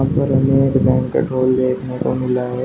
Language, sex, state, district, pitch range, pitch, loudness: Hindi, male, Uttar Pradesh, Shamli, 125-135 Hz, 130 Hz, -17 LUFS